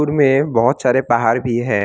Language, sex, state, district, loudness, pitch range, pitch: Hindi, male, Assam, Kamrup Metropolitan, -16 LUFS, 120-135 Hz, 125 Hz